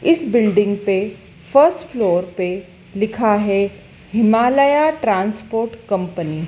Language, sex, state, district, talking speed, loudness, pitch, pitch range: Hindi, female, Madhya Pradesh, Dhar, 110 wpm, -17 LUFS, 215 Hz, 195-235 Hz